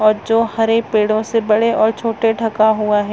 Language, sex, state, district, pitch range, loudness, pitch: Hindi, female, Chhattisgarh, Raigarh, 215-225 Hz, -16 LUFS, 220 Hz